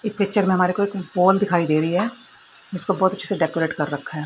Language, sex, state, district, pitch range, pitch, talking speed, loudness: Hindi, female, Haryana, Rohtak, 165-200 Hz, 185 Hz, 255 wpm, -20 LUFS